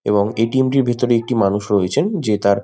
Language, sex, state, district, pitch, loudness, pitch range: Bengali, male, West Bengal, Malda, 110 Hz, -17 LUFS, 100-120 Hz